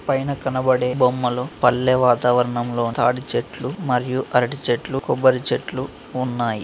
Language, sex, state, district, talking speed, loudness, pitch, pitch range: Telugu, male, Telangana, Karimnagar, 110 wpm, -20 LUFS, 125 Hz, 125-130 Hz